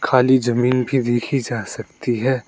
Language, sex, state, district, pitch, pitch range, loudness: Hindi, male, Arunachal Pradesh, Lower Dibang Valley, 125 Hz, 120-130 Hz, -19 LUFS